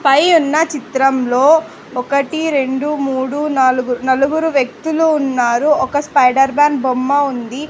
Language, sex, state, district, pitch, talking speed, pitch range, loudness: Telugu, female, Andhra Pradesh, Sri Satya Sai, 280 Hz, 115 wpm, 260-300 Hz, -14 LUFS